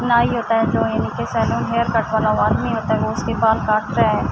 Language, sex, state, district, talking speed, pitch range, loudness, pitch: Urdu, female, Andhra Pradesh, Anantapur, 210 wpm, 220-235 Hz, -19 LUFS, 225 Hz